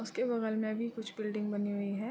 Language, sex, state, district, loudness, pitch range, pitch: Hindi, female, Chhattisgarh, Korba, -35 LUFS, 205-225 Hz, 220 Hz